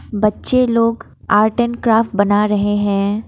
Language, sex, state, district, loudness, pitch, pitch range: Hindi, female, Assam, Kamrup Metropolitan, -16 LUFS, 215 Hz, 205-230 Hz